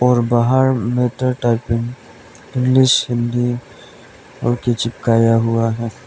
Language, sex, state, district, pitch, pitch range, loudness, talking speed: Hindi, male, Arunachal Pradesh, Lower Dibang Valley, 120 Hz, 115-125 Hz, -17 LUFS, 90 wpm